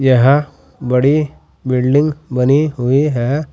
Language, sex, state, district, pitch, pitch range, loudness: Hindi, male, Uttar Pradesh, Saharanpur, 135 Hz, 125-150 Hz, -14 LUFS